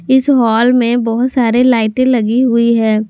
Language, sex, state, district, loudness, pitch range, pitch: Hindi, female, Jharkhand, Garhwa, -12 LUFS, 230-255 Hz, 240 Hz